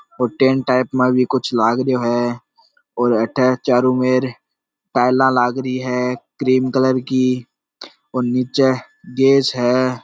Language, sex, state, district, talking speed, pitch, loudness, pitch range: Marwari, male, Rajasthan, Nagaur, 145 wpm, 130 Hz, -17 LUFS, 125-130 Hz